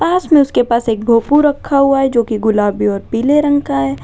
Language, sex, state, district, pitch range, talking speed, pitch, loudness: Hindi, female, Uttar Pradesh, Lalitpur, 220-285 Hz, 250 wpm, 235 Hz, -13 LUFS